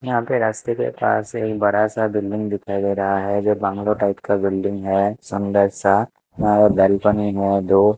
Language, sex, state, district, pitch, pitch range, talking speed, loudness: Hindi, male, Maharashtra, Washim, 100 Hz, 100-105 Hz, 190 wpm, -19 LUFS